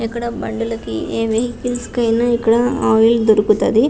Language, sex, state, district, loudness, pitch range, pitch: Telugu, female, Andhra Pradesh, Visakhapatnam, -16 LUFS, 220-240 Hz, 230 Hz